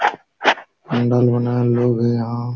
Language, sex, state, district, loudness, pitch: Hindi, male, Uttar Pradesh, Jalaun, -18 LUFS, 120 Hz